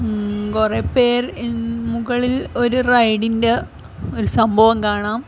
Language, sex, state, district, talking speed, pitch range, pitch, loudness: Malayalam, female, Kerala, Kollam, 125 wpm, 215-245 Hz, 230 Hz, -18 LUFS